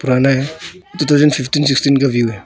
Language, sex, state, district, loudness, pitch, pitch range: Hindi, male, Arunachal Pradesh, Longding, -14 LUFS, 140 Hz, 130-150 Hz